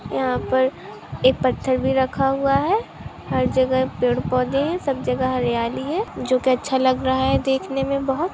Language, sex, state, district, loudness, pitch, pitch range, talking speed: Hindi, female, Bihar, Sitamarhi, -21 LUFS, 260 Hz, 255-275 Hz, 195 wpm